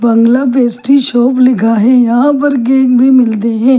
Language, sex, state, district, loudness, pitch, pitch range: Hindi, female, Delhi, New Delhi, -9 LUFS, 250 Hz, 235-260 Hz